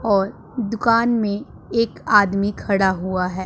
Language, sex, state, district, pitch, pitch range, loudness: Hindi, female, Punjab, Pathankot, 205 Hz, 195-230 Hz, -20 LUFS